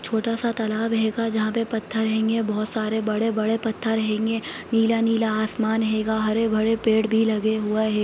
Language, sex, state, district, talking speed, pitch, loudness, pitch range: Hindi, female, Bihar, Sitamarhi, 155 wpm, 220 Hz, -23 LUFS, 220-225 Hz